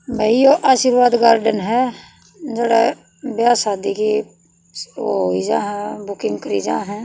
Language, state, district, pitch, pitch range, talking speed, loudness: Haryanvi, Haryana, Rohtak, 230 Hz, 205-250 Hz, 145 wpm, -17 LUFS